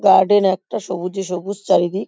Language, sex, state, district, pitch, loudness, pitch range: Bengali, female, West Bengal, Paschim Medinipur, 190 Hz, -18 LUFS, 180-200 Hz